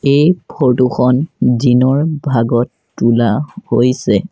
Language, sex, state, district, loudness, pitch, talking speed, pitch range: Assamese, male, Assam, Sonitpur, -14 LUFS, 125 Hz, 95 wpm, 120-145 Hz